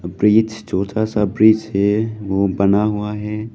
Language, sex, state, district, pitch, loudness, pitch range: Hindi, male, Arunachal Pradesh, Lower Dibang Valley, 105 Hz, -17 LUFS, 100-110 Hz